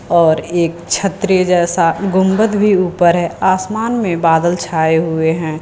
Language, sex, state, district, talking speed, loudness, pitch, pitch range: Hindi, female, Uttar Pradesh, Lucknow, 150 wpm, -14 LUFS, 175 Hz, 165-190 Hz